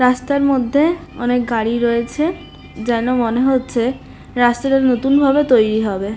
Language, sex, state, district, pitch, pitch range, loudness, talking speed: Bengali, female, West Bengal, North 24 Parganas, 250 Hz, 235-275 Hz, -16 LUFS, 125 wpm